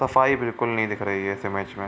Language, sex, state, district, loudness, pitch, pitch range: Hindi, male, Bihar, Supaul, -24 LUFS, 105 Hz, 100-120 Hz